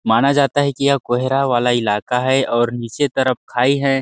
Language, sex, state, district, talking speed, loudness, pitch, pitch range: Hindi, male, Chhattisgarh, Sarguja, 210 wpm, -17 LUFS, 130 Hz, 120-140 Hz